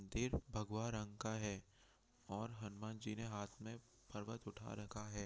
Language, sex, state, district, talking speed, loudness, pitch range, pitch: Hindi, male, Bihar, Gopalganj, 170 wpm, -48 LUFS, 105-110 Hz, 105 Hz